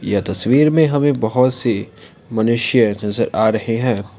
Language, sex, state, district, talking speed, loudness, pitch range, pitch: Hindi, male, Assam, Kamrup Metropolitan, 155 wpm, -17 LUFS, 105-125 Hz, 115 Hz